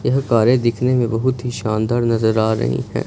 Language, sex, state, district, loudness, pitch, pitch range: Hindi, male, Punjab, Fazilka, -18 LUFS, 120 Hz, 110-125 Hz